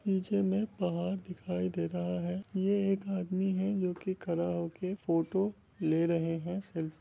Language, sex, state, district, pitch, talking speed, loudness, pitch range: Hindi, male, Bihar, Muzaffarpur, 185 Hz, 170 wpm, -33 LUFS, 170-195 Hz